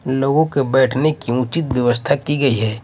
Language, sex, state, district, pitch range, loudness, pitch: Hindi, male, Maharashtra, Mumbai Suburban, 125-145 Hz, -17 LUFS, 135 Hz